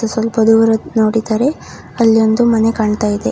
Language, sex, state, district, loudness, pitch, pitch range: Kannada, female, Karnataka, Dakshina Kannada, -13 LUFS, 225 Hz, 220-225 Hz